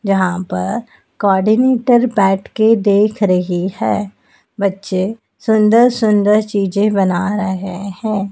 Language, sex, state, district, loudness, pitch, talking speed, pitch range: Hindi, male, Madhya Pradesh, Dhar, -15 LUFS, 200 Hz, 100 wpm, 190-220 Hz